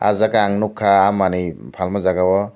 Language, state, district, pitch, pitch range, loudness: Kokborok, Tripura, Dhalai, 100 Hz, 95-105 Hz, -17 LUFS